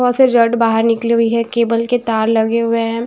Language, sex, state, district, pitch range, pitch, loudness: Hindi, female, Maharashtra, Washim, 230-235 Hz, 230 Hz, -14 LUFS